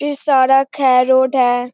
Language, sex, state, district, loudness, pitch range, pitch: Hindi, female, Bihar, East Champaran, -14 LUFS, 250-270 Hz, 260 Hz